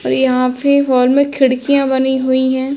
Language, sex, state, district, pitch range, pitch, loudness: Hindi, female, Uttar Pradesh, Hamirpur, 255-280 Hz, 260 Hz, -14 LUFS